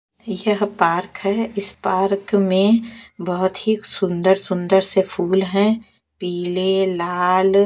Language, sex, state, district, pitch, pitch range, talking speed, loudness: Hindi, female, Haryana, Jhajjar, 190 Hz, 185-205 Hz, 110 wpm, -19 LUFS